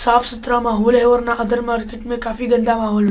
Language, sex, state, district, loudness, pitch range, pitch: Hindi, male, Delhi, New Delhi, -17 LUFS, 230-240 Hz, 235 Hz